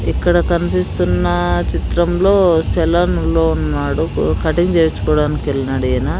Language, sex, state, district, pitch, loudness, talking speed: Telugu, female, Andhra Pradesh, Sri Satya Sai, 110 Hz, -16 LUFS, 95 wpm